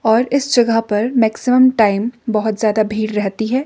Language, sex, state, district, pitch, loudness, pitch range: Hindi, female, Himachal Pradesh, Shimla, 225 Hz, -16 LUFS, 215-245 Hz